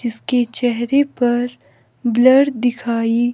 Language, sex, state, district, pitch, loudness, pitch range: Hindi, female, Himachal Pradesh, Shimla, 245 Hz, -17 LUFS, 235-250 Hz